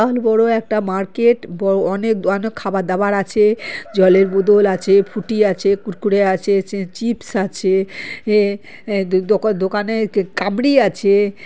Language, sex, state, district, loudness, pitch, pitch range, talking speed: Bengali, male, West Bengal, Kolkata, -17 LUFS, 200 Hz, 195-220 Hz, 125 wpm